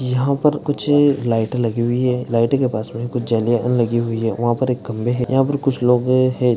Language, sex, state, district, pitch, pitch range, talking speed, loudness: Hindi, male, Maharashtra, Dhule, 125 Hz, 120-130 Hz, 230 wpm, -18 LUFS